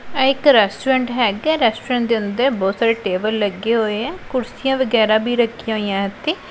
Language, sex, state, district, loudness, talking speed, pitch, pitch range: Punjabi, female, Punjab, Pathankot, -18 LUFS, 165 wpm, 230 Hz, 215-260 Hz